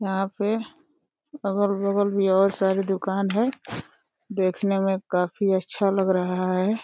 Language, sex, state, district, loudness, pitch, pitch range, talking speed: Hindi, female, Uttar Pradesh, Deoria, -24 LUFS, 195 Hz, 190-205 Hz, 140 wpm